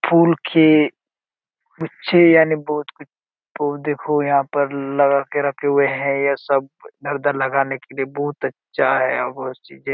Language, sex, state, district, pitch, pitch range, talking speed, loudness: Hindi, male, Jharkhand, Sahebganj, 145 Hz, 140-150 Hz, 165 wpm, -18 LUFS